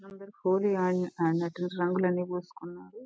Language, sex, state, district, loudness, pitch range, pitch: Telugu, female, Telangana, Nalgonda, -30 LUFS, 175-185 Hz, 180 Hz